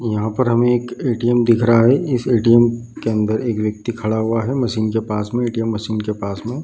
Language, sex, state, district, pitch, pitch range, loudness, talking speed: Hindi, male, Bihar, Bhagalpur, 115 Hz, 110-120 Hz, -18 LUFS, 255 wpm